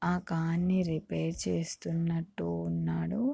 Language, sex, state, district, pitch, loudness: Telugu, female, Andhra Pradesh, Guntur, 165 Hz, -32 LUFS